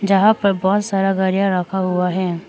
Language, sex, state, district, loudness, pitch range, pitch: Hindi, female, Arunachal Pradesh, Papum Pare, -17 LUFS, 185-195 Hz, 190 Hz